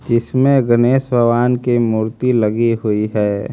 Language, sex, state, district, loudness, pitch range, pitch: Hindi, male, Haryana, Rohtak, -15 LUFS, 110-125 Hz, 120 Hz